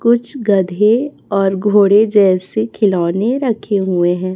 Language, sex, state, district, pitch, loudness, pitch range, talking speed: Hindi, female, Chhattisgarh, Raipur, 200 Hz, -14 LUFS, 185-220 Hz, 125 wpm